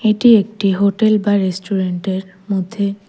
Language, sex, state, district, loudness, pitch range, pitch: Bengali, female, Tripura, West Tripura, -16 LUFS, 190-215 Hz, 200 Hz